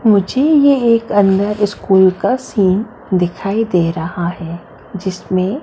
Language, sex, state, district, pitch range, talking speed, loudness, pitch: Hindi, female, Maharashtra, Mumbai Suburban, 185-225 Hz, 130 wpm, -15 LUFS, 195 Hz